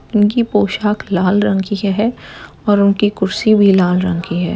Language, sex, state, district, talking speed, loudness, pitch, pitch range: Hindi, female, Bihar, Gaya, 185 wpm, -15 LUFS, 205 Hz, 185-210 Hz